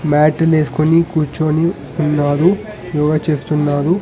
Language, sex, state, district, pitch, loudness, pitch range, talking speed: Telugu, male, Telangana, Hyderabad, 155 Hz, -15 LUFS, 150-165 Hz, 105 wpm